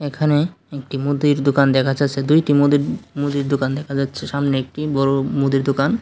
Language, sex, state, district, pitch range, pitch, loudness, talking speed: Bengali, male, Tripura, West Tripura, 135-145 Hz, 140 Hz, -19 LUFS, 170 wpm